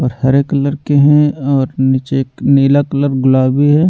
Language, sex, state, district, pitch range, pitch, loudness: Hindi, male, Delhi, New Delhi, 130-145 Hz, 140 Hz, -12 LUFS